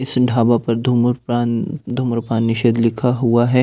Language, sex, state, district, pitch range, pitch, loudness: Hindi, male, Delhi, New Delhi, 115-125 Hz, 120 Hz, -17 LUFS